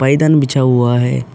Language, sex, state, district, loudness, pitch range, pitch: Hindi, male, Uttar Pradesh, Budaun, -13 LUFS, 120-140 Hz, 130 Hz